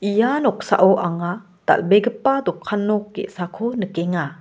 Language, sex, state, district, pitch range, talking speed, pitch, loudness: Garo, female, Meghalaya, West Garo Hills, 175-220 Hz, 110 wpm, 200 Hz, -20 LUFS